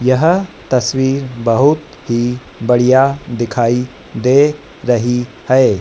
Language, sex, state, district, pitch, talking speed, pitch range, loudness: Hindi, female, Madhya Pradesh, Dhar, 130 Hz, 95 wpm, 120-135 Hz, -14 LUFS